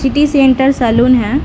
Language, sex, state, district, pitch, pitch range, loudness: Hindi, female, Bihar, Lakhisarai, 265 Hz, 245-275 Hz, -11 LUFS